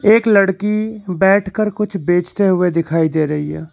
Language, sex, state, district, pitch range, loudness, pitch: Hindi, male, Karnataka, Bangalore, 165-210 Hz, -16 LUFS, 195 Hz